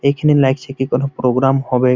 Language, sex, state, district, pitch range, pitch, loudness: Bengali, male, West Bengal, Malda, 125-140 Hz, 135 Hz, -16 LUFS